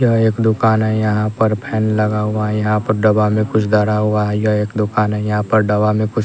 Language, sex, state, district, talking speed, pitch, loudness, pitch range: Hindi, male, Bihar, West Champaran, 260 wpm, 105 Hz, -16 LUFS, 105-110 Hz